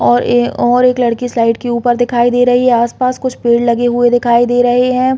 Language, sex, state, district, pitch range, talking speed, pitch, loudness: Hindi, female, Chhattisgarh, Bilaspur, 240-245 Hz, 245 wpm, 245 Hz, -12 LUFS